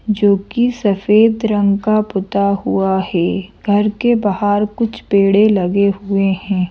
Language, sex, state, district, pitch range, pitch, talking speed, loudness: Hindi, female, Madhya Pradesh, Bhopal, 195-215 Hz, 205 Hz, 145 wpm, -15 LUFS